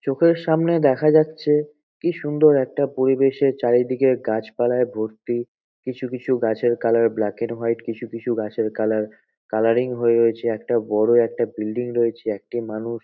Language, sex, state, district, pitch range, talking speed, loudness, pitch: Bengali, male, West Bengal, North 24 Parganas, 115-135 Hz, 150 wpm, -21 LUFS, 120 Hz